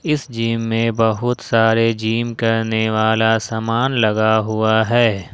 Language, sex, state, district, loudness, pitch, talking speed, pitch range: Hindi, male, Jharkhand, Ranchi, -17 LUFS, 115 Hz, 135 wpm, 110-115 Hz